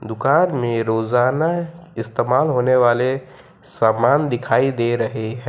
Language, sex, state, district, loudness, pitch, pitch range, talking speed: Hindi, male, Gujarat, Valsad, -18 LUFS, 125 Hz, 115-135 Hz, 120 wpm